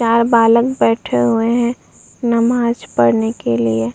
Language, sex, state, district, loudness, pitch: Hindi, female, Uttar Pradesh, Muzaffarnagar, -15 LUFS, 230 Hz